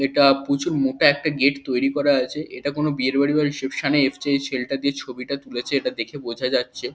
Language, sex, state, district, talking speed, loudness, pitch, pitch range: Bengali, male, West Bengal, Kolkata, 200 wpm, -22 LUFS, 140 Hz, 135-145 Hz